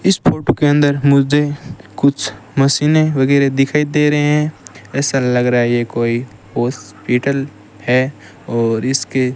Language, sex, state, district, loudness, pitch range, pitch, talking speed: Hindi, male, Rajasthan, Bikaner, -15 LUFS, 120-145 Hz, 135 Hz, 145 wpm